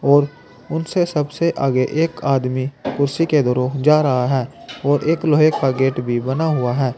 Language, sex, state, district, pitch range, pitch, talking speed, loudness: Hindi, male, Uttar Pradesh, Saharanpur, 130-155 Hz, 140 Hz, 180 wpm, -18 LUFS